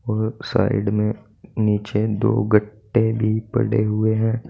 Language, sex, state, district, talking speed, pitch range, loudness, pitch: Hindi, male, Uttar Pradesh, Saharanpur, 135 wpm, 105-115 Hz, -21 LUFS, 110 Hz